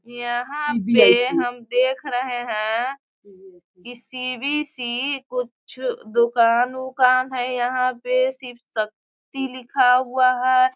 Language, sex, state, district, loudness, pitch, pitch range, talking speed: Hindi, female, Bihar, Sitamarhi, -21 LUFS, 250 Hz, 240-255 Hz, 115 wpm